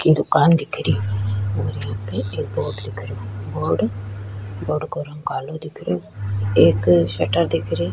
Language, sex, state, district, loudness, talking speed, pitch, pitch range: Rajasthani, female, Rajasthan, Churu, -21 LUFS, 165 wpm, 100 Hz, 100-105 Hz